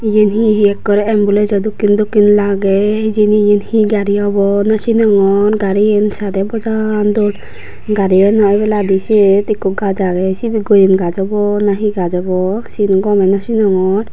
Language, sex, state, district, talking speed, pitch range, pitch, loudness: Chakma, female, Tripura, Unakoti, 160 wpm, 195-215 Hz, 205 Hz, -13 LUFS